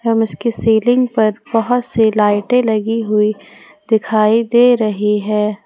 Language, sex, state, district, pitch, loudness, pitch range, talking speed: Hindi, female, Jharkhand, Ranchi, 220 Hz, -15 LUFS, 215-235 Hz, 125 wpm